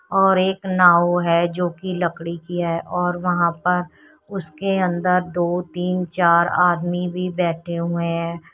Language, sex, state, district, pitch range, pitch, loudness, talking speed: Hindi, female, Uttar Pradesh, Shamli, 170-180 Hz, 175 Hz, -20 LUFS, 155 wpm